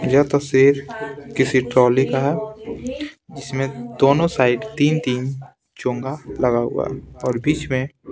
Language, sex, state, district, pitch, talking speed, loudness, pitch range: Hindi, male, Bihar, Patna, 135 Hz, 125 wpm, -20 LUFS, 130-150 Hz